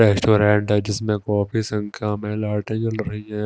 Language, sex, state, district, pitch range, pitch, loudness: Hindi, male, Delhi, New Delhi, 105-110 Hz, 105 Hz, -21 LUFS